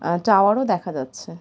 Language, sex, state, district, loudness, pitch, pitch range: Bengali, female, West Bengal, Purulia, -20 LUFS, 175 Hz, 130-205 Hz